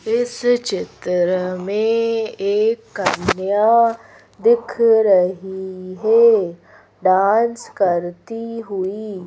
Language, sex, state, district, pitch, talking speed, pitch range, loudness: Hindi, female, Madhya Pradesh, Bhopal, 215 Hz, 70 wpm, 185-230 Hz, -18 LUFS